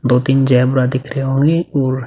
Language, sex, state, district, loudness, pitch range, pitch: Hindi, male, Uttar Pradesh, Budaun, -15 LUFS, 130-135 Hz, 135 Hz